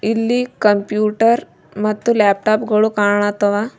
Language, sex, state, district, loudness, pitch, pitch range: Kannada, female, Karnataka, Bidar, -16 LUFS, 215 Hz, 205-225 Hz